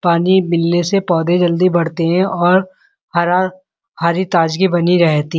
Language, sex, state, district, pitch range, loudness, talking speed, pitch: Hindi, female, Uttar Pradesh, Muzaffarnagar, 170-185 Hz, -15 LUFS, 155 wpm, 175 Hz